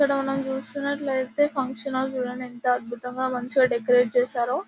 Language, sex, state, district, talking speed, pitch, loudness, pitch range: Telugu, female, Telangana, Nalgonda, 140 wpm, 260 Hz, -25 LUFS, 250-270 Hz